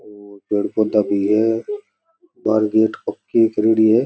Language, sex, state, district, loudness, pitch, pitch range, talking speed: Rajasthani, male, Rajasthan, Nagaur, -18 LUFS, 110 Hz, 105-115 Hz, 145 wpm